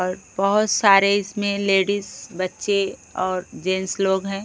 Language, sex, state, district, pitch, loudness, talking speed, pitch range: Hindi, female, Odisha, Khordha, 195 Hz, -21 LUFS, 135 wpm, 185-200 Hz